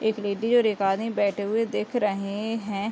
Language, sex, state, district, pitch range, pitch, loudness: Hindi, female, Uttar Pradesh, Deoria, 200-225 Hz, 210 Hz, -25 LUFS